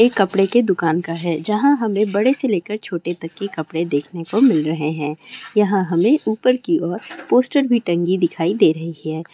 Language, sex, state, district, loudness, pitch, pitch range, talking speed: Hindi, female, Bihar, Gopalganj, -19 LUFS, 190 Hz, 165-225 Hz, 210 wpm